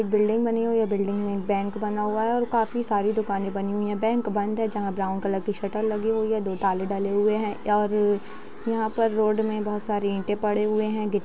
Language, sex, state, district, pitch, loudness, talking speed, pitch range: Hindi, female, Bihar, Jamui, 210 Hz, -25 LUFS, 245 wpm, 205-220 Hz